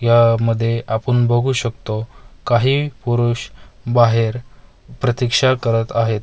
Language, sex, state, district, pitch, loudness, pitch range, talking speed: Marathi, male, Maharashtra, Mumbai Suburban, 120 Hz, -17 LUFS, 115-125 Hz, 95 wpm